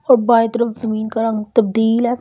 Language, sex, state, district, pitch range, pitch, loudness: Hindi, female, Delhi, New Delhi, 220-235 Hz, 230 Hz, -16 LUFS